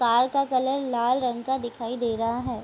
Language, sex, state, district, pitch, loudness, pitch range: Hindi, female, Bihar, Darbhanga, 245 Hz, -25 LUFS, 235-260 Hz